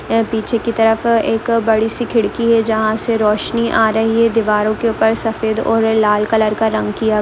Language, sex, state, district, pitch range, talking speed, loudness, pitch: Hindi, female, Bihar, Madhepura, 220-230 Hz, 210 wpm, -15 LUFS, 225 Hz